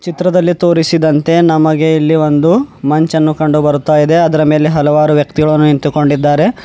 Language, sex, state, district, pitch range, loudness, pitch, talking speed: Kannada, male, Karnataka, Bidar, 150-165 Hz, -11 LUFS, 155 Hz, 145 wpm